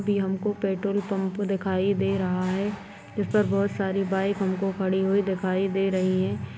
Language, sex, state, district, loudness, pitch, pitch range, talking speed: Hindi, female, Uttar Pradesh, Ghazipur, -26 LUFS, 195 Hz, 190-200 Hz, 180 wpm